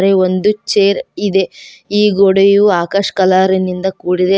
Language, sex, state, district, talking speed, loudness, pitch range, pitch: Kannada, female, Karnataka, Koppal, 125 wpm, -13 LUFS, 185-200 Hz, 195 Hz